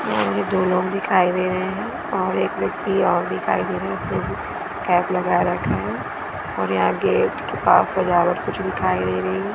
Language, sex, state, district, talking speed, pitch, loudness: Hindi, female, Bihar, Araria, 195 wpm, 185 Hz, -21 LUFS